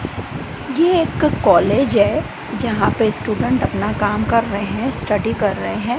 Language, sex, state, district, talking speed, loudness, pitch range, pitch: Hindi, female, Gujarat, Gandhinagar, 160 wpm, -18 LUFS, 220-325 Hz, 240 Hz